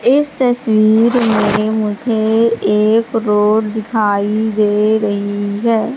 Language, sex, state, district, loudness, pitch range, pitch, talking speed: Hindi, female, Madhya Pradesh, Katni, -14 LUFS, 210-230 Hz, 220 Hz, 100 wpm